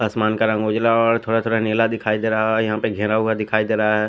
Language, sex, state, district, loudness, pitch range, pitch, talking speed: Hindi, male, Maharashtra, Washim, -19 LUFS, 110-115 Hz, 110 Hz, 295 wpm